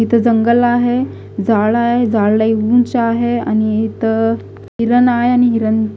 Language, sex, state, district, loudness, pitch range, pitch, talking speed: Marathi, female, Maharashtra, Gondia, -14 LUFS, 220-240 Hz, 230 Hz, 150 wpm